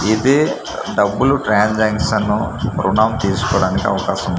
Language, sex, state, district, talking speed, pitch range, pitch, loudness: Telugu, male, Andhra Pradesh, Manyam, 95 wpm, 95-110 Hz, 105 Hz, -16 LUFS